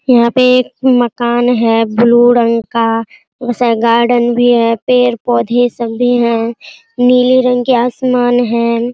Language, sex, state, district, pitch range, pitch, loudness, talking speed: Hindi, female, Bihar, Araria, 235-245 Hz, 240 Hz, -11 LUFS, 135 wpm